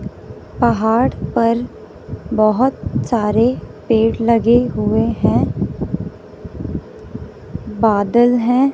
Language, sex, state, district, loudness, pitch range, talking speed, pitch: Hindi, female, Punjab, Fazilka, -16 LUFS, 225-240 Hz, 70 wpm, 235 Hz